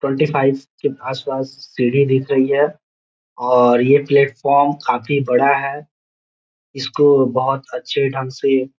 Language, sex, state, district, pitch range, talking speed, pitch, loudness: Hindi, male, Bihar, Gopalganj, 130-140 Hz, 135 wpm, 135 Hz, -17 LUFS